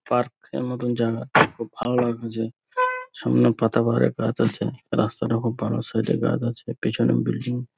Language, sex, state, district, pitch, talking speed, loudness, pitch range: Bengali, male, West Bengal, Dakshin Dinajpur, 120 Hz, 175 wpm, -24 LUFS, 115-125 Hz